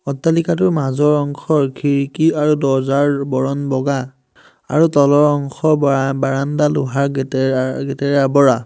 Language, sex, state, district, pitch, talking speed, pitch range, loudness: Assamese, male, Assam, Hailakandi, 140 Hz, 125 wpm, 135-150 Hz, -16 LUFS